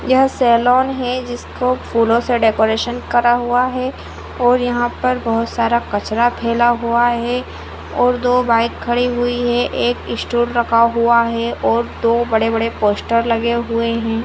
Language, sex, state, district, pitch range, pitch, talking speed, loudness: Hindi, female, Goa, North and South Goa, 230-245 Hz, 240 Hz, 160 wpm, -16 LUFS